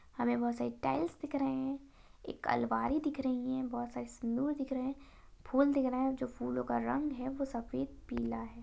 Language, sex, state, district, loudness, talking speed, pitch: Hindi, female, Bihar, Saharsa, -36 LUFS, 215 wpm, 255 Hz